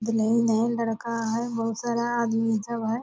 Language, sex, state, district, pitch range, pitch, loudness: Hindi, female, Bihar, Purnia, 225-235 Hz, 230 Hz, -26 LUFS